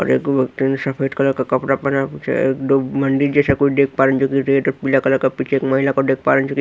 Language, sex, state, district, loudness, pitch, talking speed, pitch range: Hindi, male, Bihar, Katihar, -17 LUFS, 135 Hz, 225 wpm, 135-140 Hz